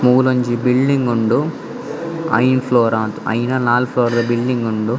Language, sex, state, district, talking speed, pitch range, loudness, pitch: Tulu, male, Karnataka, Dakshina Kannada, 120 wpm, 115-125 Hz, -17 LUFS, 120 Hz